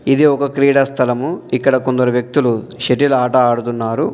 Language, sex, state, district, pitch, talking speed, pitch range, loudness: Telugu, male, Telangana, Adilabad, 130 Hz, 145 wpm, 125-135 Hz, -15 LUFS